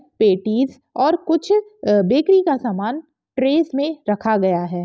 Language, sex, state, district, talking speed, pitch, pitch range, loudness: Hindi, female, Bihar, Begusarai, 135 wpm, 265 Hz, 210-320 Hz, -18 LUFS